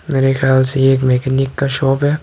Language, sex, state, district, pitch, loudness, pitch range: Hindi, male, Tripura, Dhalai, 135 Hz, -14 LUFS, 130-140 Hz